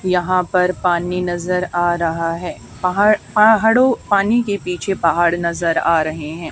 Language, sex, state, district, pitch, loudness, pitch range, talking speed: Hindi, female, Haryana, Charkhi Dadri, 180 Hz, -17 LUFS, 170-200 Hz, 155 wpm